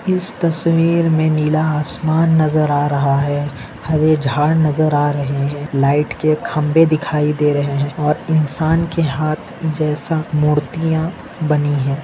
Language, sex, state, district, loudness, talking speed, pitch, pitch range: Hindi, male, Maharashtra, Nagpur, -16 LUFS, 150 wpm, 155 Hz, 145-160 Hz